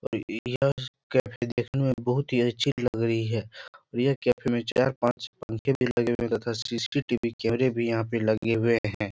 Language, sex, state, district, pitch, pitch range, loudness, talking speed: Hindi, male, Bihar, Jahanabad, 120 Hz, 115-130 Hz, -27 LUFS, 195 wpm